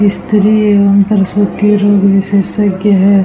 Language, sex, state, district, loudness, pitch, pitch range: Hindi, female, Bihar, Vaishali, -10 LUFS, 200 Hz, 195-205 Hz